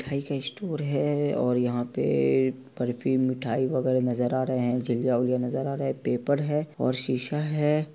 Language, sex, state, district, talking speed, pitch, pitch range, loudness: Hindi, male, Bihar, Araria, 195 wpm, 130 Hz, 125-145 Hz, -27 LUFS